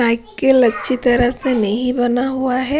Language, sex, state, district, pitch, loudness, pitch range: Hindi, female, Punjab, Pathankot, 250 Hz, -16 LUFS, 240-260 Hz